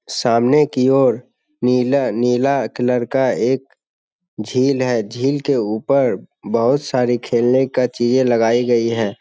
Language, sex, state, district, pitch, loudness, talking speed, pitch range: Hindi, male, Bihar, Jamui, 125 Hz, -17 LUFS, 130 wpm, 120-135 Hz